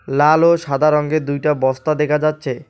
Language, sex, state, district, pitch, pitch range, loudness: Bengali, male, West Bengal, Alipurduar, 150 Hz, 140-155 Hz, -16 LUFS